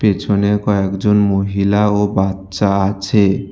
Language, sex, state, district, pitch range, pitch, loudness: Bengali, male, West Bengal, Alipurduar, 95-105 Hz, 100 Hz, -15 LUFS